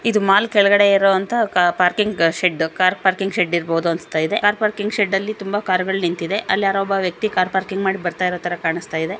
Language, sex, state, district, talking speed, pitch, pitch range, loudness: Kannada, female, Karnataka, Dakshina Kannada, 185 wpm, 190 Hz, 175-205 Hz, -18 LUFS